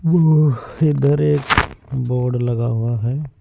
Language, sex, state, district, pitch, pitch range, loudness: Hindi, male, Uttar Pradesh, Saharanpur, 130 Hz, 120-150 Hz, -18 LUFS